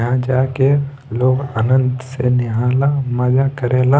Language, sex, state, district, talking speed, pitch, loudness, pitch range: Bhojpuri, male, Bihar, East Champaran, 150 wpm, 130 Hz, -17 LUFS, 125-135 Hz